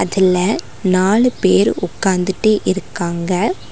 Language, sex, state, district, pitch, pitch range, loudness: Tamil, female, Tamil Nadu, Nilgiris, 185 Hz, 180-205 Hz, -16 LUFS